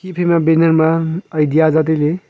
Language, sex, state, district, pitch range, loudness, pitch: Wancho, male, Arunachal Pradesh, Longding, 160-170 Hz, -14 LUFS, 160 Hz